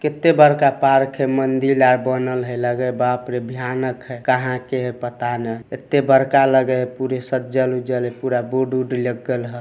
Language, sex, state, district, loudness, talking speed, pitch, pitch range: Hindi, male, Bihar, Samastipur, -19 LUFS, 200 wpm, 130 Hz, 125-135 Hz